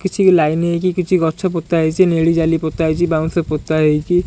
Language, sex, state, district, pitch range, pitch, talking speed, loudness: Odia, male, Odisha, Khordha, 160-180 Hz, 165 Hz, 195 wpm, -16 LUFS